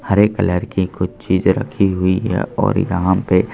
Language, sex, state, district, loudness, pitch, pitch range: Hindi, male, Madhya Pradesh, Bhopal, -17 LUFS, 95 Hz, 90-100 Hz